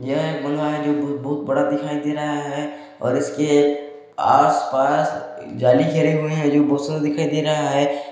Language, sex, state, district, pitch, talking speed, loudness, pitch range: Hindi, male, Chhattisgarh, Balrampur, 145 Hz, 190 wpm, -20 LUFS, 145-150 Hz